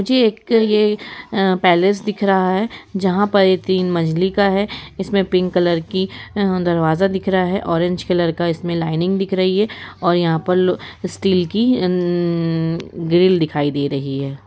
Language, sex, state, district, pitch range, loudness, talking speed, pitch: Hindi, female, Bihar, East Champaran, 170-195 Hz, -17 LUFS, 170 wpm, 185 Hz